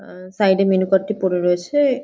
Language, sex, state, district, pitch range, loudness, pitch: Bengali, female, West Bengal, Jhargram, 185-215 Hz, -18 LUFS, 190 Hz